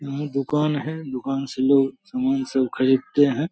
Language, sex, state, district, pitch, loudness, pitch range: Hindi, male, Bihar, Saharsa, 140 Hz, -22 LUFS, 135-150 Hz